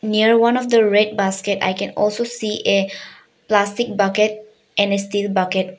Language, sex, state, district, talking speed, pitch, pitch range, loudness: English, female, Arunachal Pradesh, Papum Pare, 175 wpm, 205 Hz, 195-215 Hz, -18 LUFS